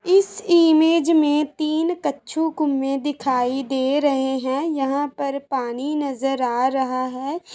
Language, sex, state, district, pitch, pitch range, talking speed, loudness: Hindi, female, Uttar Pradesh, Gorakhpur, 280 Hz, 265-315 Hz, 125 wpm, -21 LUFS